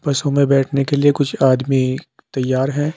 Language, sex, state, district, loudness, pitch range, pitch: Hindi, male, Uttar Pradesh, Saharanpur, -17 LUFS, 130-145 Hz, 140 Hz